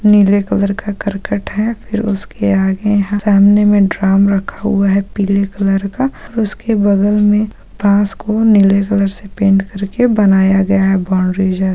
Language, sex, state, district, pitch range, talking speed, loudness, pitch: Hindi, female, Bihar, Supaul, 195-210 Hz, 180 wpm, -13 LUFS, 200 Hz